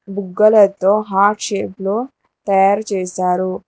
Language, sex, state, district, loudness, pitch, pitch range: Telugu, female, Telangana, Hyderabad, -16 LUFS, 200 Hz, 190-210 Hz